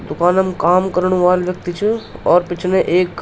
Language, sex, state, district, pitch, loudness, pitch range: Garhwali, male, Uttarakhand, Tehri Garhwal, 180 Hz, -16 LUFS, 175-185 Hz